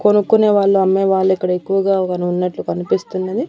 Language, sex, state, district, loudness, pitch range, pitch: Telugu, female, Andhra Pradesh, Annamaya, -16 LUFS, 180-195 Hz, 190 Hz